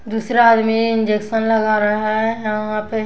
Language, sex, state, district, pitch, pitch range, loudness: Hindi, female, Bihar, West Champaran, 220 Hz, 215-225 Hz, -17 LUFS